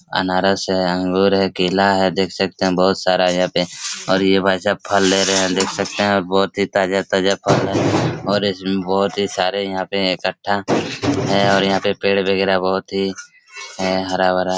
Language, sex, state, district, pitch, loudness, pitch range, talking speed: Hindi, male, Chhattisgarh, Raigarh, 95 Hz, -18 LUFS, 95-100 Hz, 180 wpm